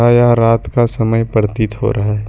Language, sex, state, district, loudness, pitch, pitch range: Hindi, male, Jharkhand, Ranchi, -14 LUFS, 115 Hz, 105-120 Hz